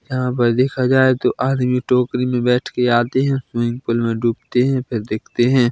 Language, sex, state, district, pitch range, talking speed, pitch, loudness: Hindi, male, Chhattisgarh, Bilaspur, 120-130 Hz, 200 wpm, 125 Hz, -18 LUFS